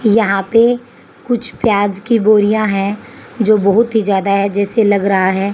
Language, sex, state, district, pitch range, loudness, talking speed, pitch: Hindi, female, Haryana, Charkhi Dadri, 200-225 Hz, -14 LUFS, 175 wpm, 210 Hz